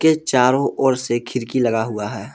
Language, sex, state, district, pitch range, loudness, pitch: Hindi, male, Jharkhand, Palamu, 110-130 Hz, -19 LUFS, 125 Hz